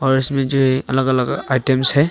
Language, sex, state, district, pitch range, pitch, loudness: Hindi, male, Arunachal Pradesh, Longding, 130-140 Hz, 135 Hz, -16 LUFS